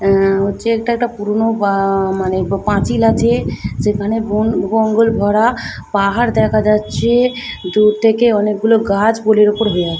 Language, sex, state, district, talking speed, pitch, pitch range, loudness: Bengali, female, West Bengal, Jhargram, 145 wpm, 215 Hz, 200-225 Hz, -15 LUFS